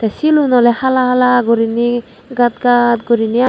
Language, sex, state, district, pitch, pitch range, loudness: Chakma, female, Tripura, Dhalai, 240 Hz, 235-250 Hz, -13 LUFS